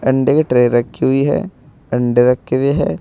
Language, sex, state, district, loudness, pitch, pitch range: Hindi, male, Uttar Pradesh, Saharanpur, -15 LUFS, 130 Hz, 125-140 Hz